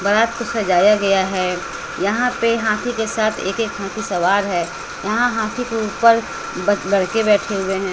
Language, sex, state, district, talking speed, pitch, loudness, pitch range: Hindi, female, Bihar, West Champaran, 180 wpm, 210 Hz, -18 LUFS, 195-230 Hz